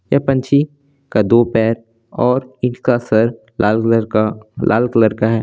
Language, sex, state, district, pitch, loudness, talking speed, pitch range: Hindi, male, Jharkhand, Deoghar, 115 Hz, -16 LUFS, 165 wpm, 110-125 Hz